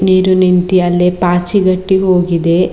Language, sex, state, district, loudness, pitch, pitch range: Kannada, female, Karnataka, Bidar, -11 LUFS, 185 Hz, 175-185 Hz